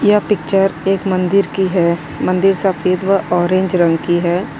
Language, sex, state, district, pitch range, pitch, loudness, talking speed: Hindi, female, Uttar Pradesh, Lalitpur, 175-195 Hz, 185 Hz, -15 LUFS, 170 wpm